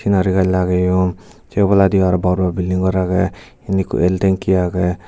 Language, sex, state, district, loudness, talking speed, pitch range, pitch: Chakma, male, Tripura, Dhalai, -16 LUFS, 190 wpm, 90-95 Hz, 95 Hz